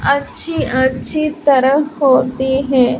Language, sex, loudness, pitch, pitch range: Hindi, female, -14 LUFS, 270 Hz, 260-290 Hz